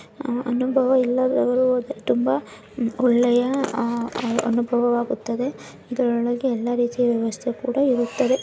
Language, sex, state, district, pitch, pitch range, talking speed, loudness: Kannada, female, Karnataka, Mysore, 245 Hz, 235-255 Hz, 90 wpm, -22 LUFS